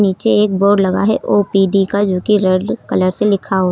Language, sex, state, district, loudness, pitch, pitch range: Hindi, female, Uttar Pradesh, Lucknow, -14 LUFS, 195 Hz, 190-205 Hz